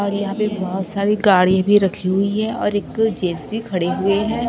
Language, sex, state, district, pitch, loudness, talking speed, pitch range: Hindi, female, Chhattisgarh, Raipur, 200 Hz, -19 LUFS, 215 wpm, 190-210 Hz